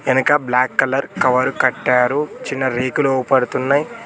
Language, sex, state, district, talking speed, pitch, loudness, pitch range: Telugu, male, Telangana, Mahabubabad, 120 wpm, 130 Hz, -17 LUFS, 125-145 Hz